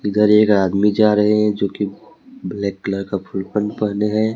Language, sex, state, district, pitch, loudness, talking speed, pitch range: Hindi, male, Jharkhand, Deoghar, 105 Hz, -18 LUFS, 190 wpm, 100-105 Hz